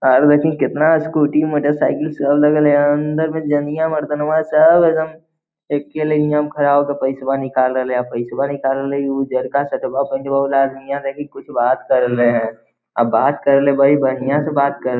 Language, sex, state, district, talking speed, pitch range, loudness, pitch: Magahi, male, Bihar, Lakhisarai, 205 wpm, 135-150 Hz, -16 LUFS, 140 Hz